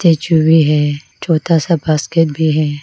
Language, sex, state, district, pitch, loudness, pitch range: Hindi, female, Arunachal Pradesh, Lower Dibang Valley, 160 Hz, -13 LUFS, 150-165 Hz